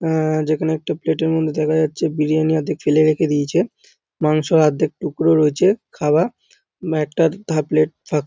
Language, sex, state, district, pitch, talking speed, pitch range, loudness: Bengali, male, West Bengal, North 24 Parganas, 155 Hz, 175 wpm, 155-165 Hz, -18 LUFS